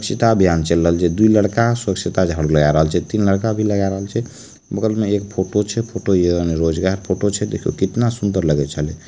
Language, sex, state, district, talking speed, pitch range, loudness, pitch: Maithili, male, Bihar, Supaul, 220 wpm, 85-110 Hz, -18 LUFS, 95 Hz